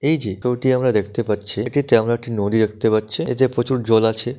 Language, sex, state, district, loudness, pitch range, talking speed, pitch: Bengali, male, West Bengal, Dakshin Dinajpur, -19 LUFS, 105-125 Hz, 230 wpm, 115 Hz